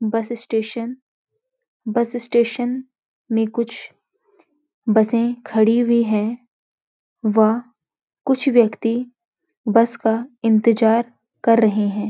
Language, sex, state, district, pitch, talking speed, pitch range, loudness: Hindi, female, Uttarakhand, Uttarkashi, 235 Hz, 95 wpm, 225-245 Hz, -19 LUFS